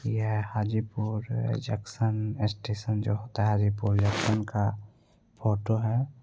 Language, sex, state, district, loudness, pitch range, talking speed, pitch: Hindi, male, Bihar, Begusarai, -29 LUFS, 105-115 Hz, 115 wpm, 110 Hz